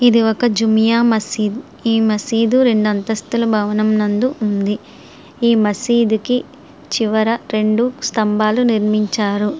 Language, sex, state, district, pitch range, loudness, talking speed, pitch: Telugu, female, Andhra Pradesh, Srikakulam, 215-235 Hz, -16 LUFS, 105 wpm, 220 Hz